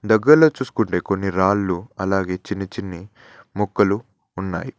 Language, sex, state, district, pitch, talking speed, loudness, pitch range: Telugu, male, Telangana, Mahabubabad, 100 Hz, 115 wpm, -20 LUFS, 95-110 Hz